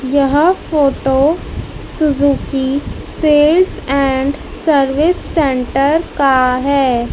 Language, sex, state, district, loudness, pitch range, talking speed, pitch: Hindi, female, Madhya Pradesh, Dhar, -14 LUFS, 270-305 Hz, 75 wpm, 280 Hz